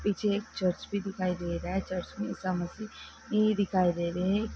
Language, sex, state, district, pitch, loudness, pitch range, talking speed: Hindi, female, Karnataka, Belgaum, 190 Hz, -31 LUFS, 180-205 Hz, 210 wpm